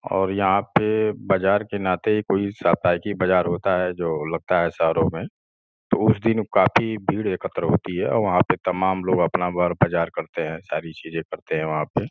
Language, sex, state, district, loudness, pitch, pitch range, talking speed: Hindi, male, Uttar Pradesh, Gorakhpur, -22 LUFS, 90 Hz, 85-100 Hz, 185 wpm